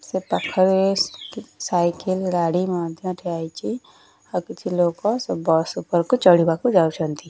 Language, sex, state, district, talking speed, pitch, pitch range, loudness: Odia, female, Odisha, Nuapada, 100 wpm, 175 Hz, 165-185 Hz, -21 LUFS